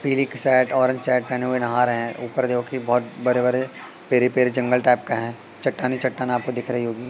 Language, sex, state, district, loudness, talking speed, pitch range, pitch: Hindi, male, Madhya Pradesh, Katni, -21 LUFS, 220 wpm, 120-130 Hz, 125 Hz